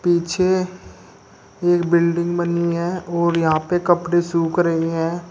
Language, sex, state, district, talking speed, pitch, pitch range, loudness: Hindi, male, Uttar Pradesh, Shamli, 145 wpm, 170 Hz, 170-175 Hz, -19 LUFS